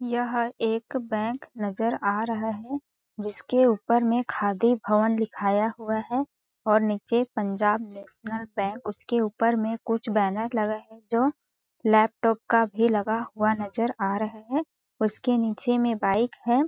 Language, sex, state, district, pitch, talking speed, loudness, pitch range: Hindi, female, Chhattisgarh, Balrampur, 225 Hz, 145 wpm, -26 LUFS, 215-235 Hz